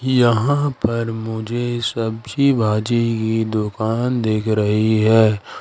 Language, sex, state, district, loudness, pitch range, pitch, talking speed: Hindi, male, Madhya Pradesh, Katni, -18 LUFS, 110-120 Hz, 115 Hz, 105 wpm